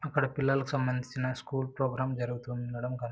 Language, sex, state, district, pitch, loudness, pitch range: Telugu, male, Andhra Pradesh, Anantapur, 130 Hz, -32 LUFS, 125-135 Hz